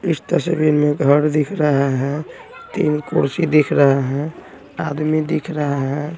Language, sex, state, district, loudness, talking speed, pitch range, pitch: Hindi, male, Bihar, Patna, -18 LUFS, 155 wpm, 145-160 Hz, 150 Hz